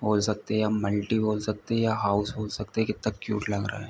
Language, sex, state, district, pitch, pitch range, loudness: Hindi, male, Uttar Pradesh, Ghazipur, 105 Hz, 105-110 Hz, -28 LUFS